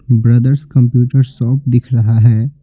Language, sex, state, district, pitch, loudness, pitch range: Hindi, male, Bihar, Patna, 125 Hz, -12 LUFS, 120-135 Hz